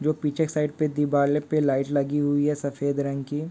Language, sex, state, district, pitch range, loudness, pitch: Hindi, male, Chhattisgarh, Korba, 140-150 Hz, -25 LUFS, 145 Hz